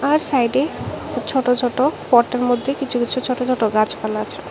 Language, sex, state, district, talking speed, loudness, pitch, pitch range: Bengali, female, Tripura, West Tripura, 160 wpm, -19 LUFS, 250 Hz, 240-270 Hz